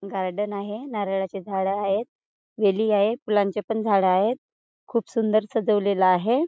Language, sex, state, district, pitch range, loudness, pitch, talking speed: Marathi, female, Maharashtra, Chandrapur, 195-225 Hz, -24 LUFS, 205 Hz, 140 wpm